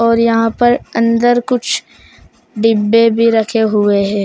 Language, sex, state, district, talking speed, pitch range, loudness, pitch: Hindi, male, Uttar Pradesh, Shamli, 140 wpm, 215-230 Hz, -13 LUFS, 230 Hz